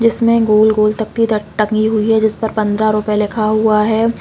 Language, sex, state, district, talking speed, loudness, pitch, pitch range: Hindi, female, Chhattisgarh, Bastar, 200 wpm, -14 LUFS, 215 Hz, 215-220 Hz